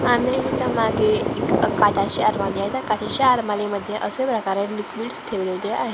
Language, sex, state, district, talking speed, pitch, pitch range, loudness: Marathi, female, Maharashtra, Gondia, 120 wpm, 215 Hz, 205-240 Hz, -21 LUFS